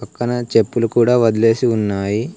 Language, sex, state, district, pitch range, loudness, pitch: Telugu, male, Telangana, Komaram Bheem, 110-120 Hz, -16 LUFS, 115 Hz